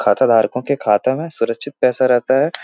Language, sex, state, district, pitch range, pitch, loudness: Hindi, male, Bihar, Jahanabad, 120-140 Hz, 125 Hz, -16 LUFS